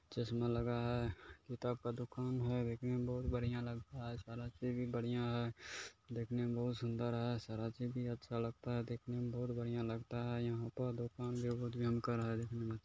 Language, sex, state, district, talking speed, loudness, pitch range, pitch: Hindi, male, Bihar, Kishanganj, 190 wpm, -42 LUFS, 115-120 Hz, 120 Hz